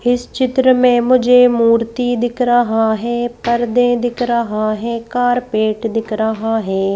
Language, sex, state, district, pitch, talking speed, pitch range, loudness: Hindi, female, Madhya Pradesh, Bhopal, 240 Hz, 140 wpm, 225-245 Hz, -15 LUFS